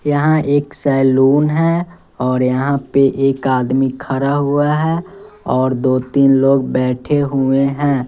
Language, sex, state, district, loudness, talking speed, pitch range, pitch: Hindi, male, Bihar, West Champaran, -15 LUFS, 140 wpm, 130-145 Hz, 135 Hz